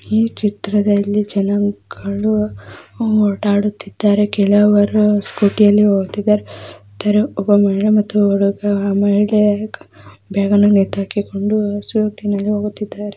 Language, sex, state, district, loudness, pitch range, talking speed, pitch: Kannada, female, Karnataka, Dakshina Kannada, -16 LUFS, 200-210 Hz, 60 wpm, 205 Hz